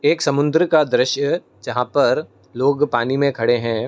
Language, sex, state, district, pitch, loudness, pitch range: Hindi, male, Uttar Pradesh, Muzaffarnagar, 135 Hz, -18 LUFS, 120-145 Hz